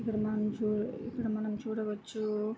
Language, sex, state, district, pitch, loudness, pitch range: Telugu, female, Andhra Pradesh, Guntur, 215 Hz, -34 LUFS, 215-220 Hz